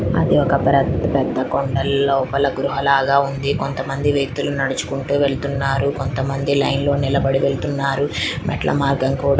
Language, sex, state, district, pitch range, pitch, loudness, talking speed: Telugu, female, Andhra Pradesh, Srikakulam, 135-140 Hz, 140 Hz, -19 LUFS, 130 wpm